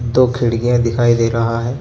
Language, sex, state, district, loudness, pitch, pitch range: Hindi, male, Jharkhand, Garhwa, -15 LUFS, 120 Hz, 115-120 Hz